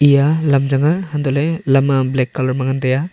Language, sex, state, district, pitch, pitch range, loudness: Wancho, male, Arunachal Pradesh, Longding, 140 Hz, 130-150 Hz, -16 LUFS